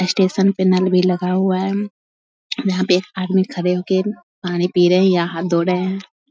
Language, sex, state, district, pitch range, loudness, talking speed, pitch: Hindi, female, Bihar, Vaishali, 180-190 Hz, -18 LUFS, 230 wpm, 185 Hz